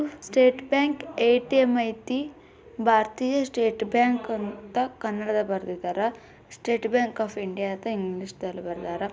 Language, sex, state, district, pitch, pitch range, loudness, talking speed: Kannada, female, Karnataka, Bijapur, 225 Hz, 210-255 Hz, -26 LUFS, 110 wpm